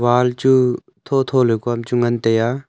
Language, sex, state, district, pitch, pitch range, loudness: Wancho, male, Arunachal Pradesh, Longding, 120 Hz, 120-130 Hz, -17 LUFS